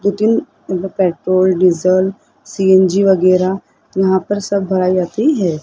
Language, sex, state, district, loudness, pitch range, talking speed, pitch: Hindi, male, Rajasthan, Jaipur, -14 LUFS, 185-200 Hz, 140 wpm, 190 Hz